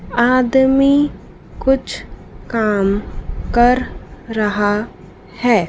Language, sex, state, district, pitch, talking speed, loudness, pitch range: Hindi, female, Madhya Pradesh, Dhar, 240 Hz, 65 wpm, -16 LUFS, 210-265 Hz